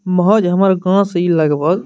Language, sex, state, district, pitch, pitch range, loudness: Maithili, male, Bihar, Madhepura, 185 Hz, 175-195 Hz, -14 LUFS